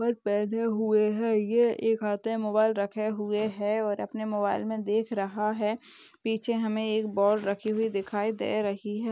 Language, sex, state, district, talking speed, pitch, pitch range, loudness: Hindi, female, Uttar Pradesh, Ghazipur, 185 wpm, 215 Hz, 210-220 Hz, -28 LUFS